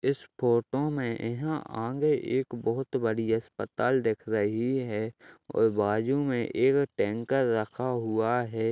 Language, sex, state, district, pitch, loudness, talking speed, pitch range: Hindi, male, Uttar Pradesh, Ghazipur, 120 Hz, -29 LUFS, 140 wpm, 110-130 Hz